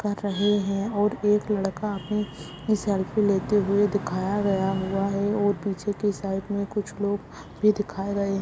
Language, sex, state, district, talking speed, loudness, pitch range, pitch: Hindi, female, Bihar, Lakhisarai, 180 wpm, -25 LUFS, 195-205 Hz, 200 Hz